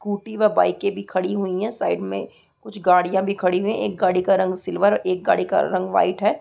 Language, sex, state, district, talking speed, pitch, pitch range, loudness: Hindi, female, Chhattisgarh, Korba, 255 wpm, 190 Hz, 180-200 Hz, -21 LUFS